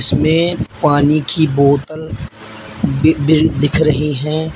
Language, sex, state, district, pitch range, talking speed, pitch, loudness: Hindi, male, Uttar Pradesh, Lalitpur, 140-155 Hz, 120 wpm, 150 Hz, -14 LUFS